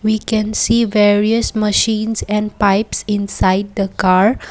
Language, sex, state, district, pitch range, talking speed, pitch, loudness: English, female, Assam, Kamrup Metropolitan, 200-220 Hz, 135 wpm, 210 Hz, -15 LUFS